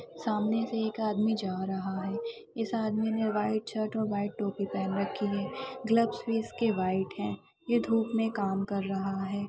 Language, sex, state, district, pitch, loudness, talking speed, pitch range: Hindi, female, Chhattisgarh, Sukma, 215 Hz, -31 LUFS, 150 wpm, 195-225 Hz